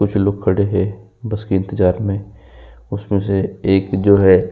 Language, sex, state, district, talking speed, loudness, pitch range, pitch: Hindi, male, Uttar Pradesh, Jyotiba Phule Nagar, 185 wpm, -17 LUFS, 95-100 Hz, 100 Hz